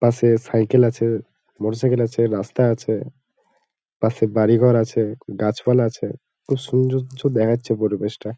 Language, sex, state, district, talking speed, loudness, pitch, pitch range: Bengali, male, West Bengal, Malda, 120 wpm, -20 LUFS, 115 Hz, 110-125 Hz